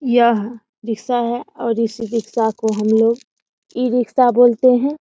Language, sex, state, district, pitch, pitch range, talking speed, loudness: Hindi, female, Bihar, Samastipur, 235 Hz, 225-245 Hz, 130 wpm, -17 LUFS